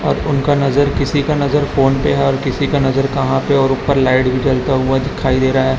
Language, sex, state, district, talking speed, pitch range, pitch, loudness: Hindi, male, Chhattisgarh, Raipur, 270 wpm, 130-140 Hz, 135 Hz, -15 LUFS